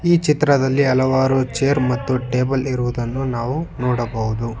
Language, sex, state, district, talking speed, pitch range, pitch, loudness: Kannada, male, Karnataka, Bangalore, 115 wpm, 120-135 Hz, 130 Hz, -19 LUFS